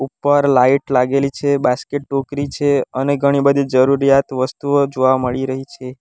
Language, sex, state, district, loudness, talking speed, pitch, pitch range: Gujarati, male, Gujarat, Valsad, -16 LUFS, 160 wpm, 140 Hz, 130-140 Hz